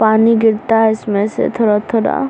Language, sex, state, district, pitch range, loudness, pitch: Hindi, female, Bihar, Samastipur, 215-225 Hz, -14 LUFS, 225 Hz